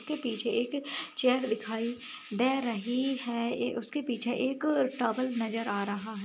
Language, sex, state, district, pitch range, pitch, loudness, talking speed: Hindi, female, Uttarakhand, Tehri Garhwal, 225-265 Hz, 245 Hz, -31 LUFS, 155 wpm